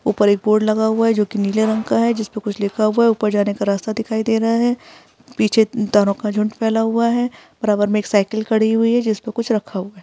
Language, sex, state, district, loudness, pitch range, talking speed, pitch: Hindi, female, Uttar Pradesh, Etah, -18 LUFS, 210-225 Hz, 270 wpm, 220 Hz